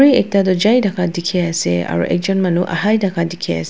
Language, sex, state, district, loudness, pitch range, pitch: Nagamese, female, Nagaland, Dimapur, -16 LUFS, 170-195 Hz, 180 Hz